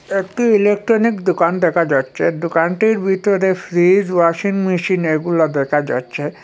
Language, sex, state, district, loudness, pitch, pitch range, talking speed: Bengali, male, Assam, Hailakandi, -16 LUFS, 180 Hz, 165-195 Hz, 120 wpm